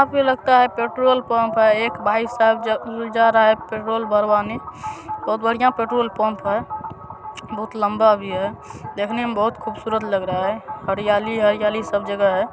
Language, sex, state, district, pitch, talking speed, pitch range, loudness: Hindi, male, Bihar, Supaul, 220 Hz, 195 wpm, 210-235 Hz, -20 LUFS